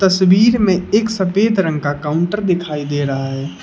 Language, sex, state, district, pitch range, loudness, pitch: Hindi, male, Uttar Pradesh, Lucknow, 145-200 Hz, -16 LUFS, 185 Hz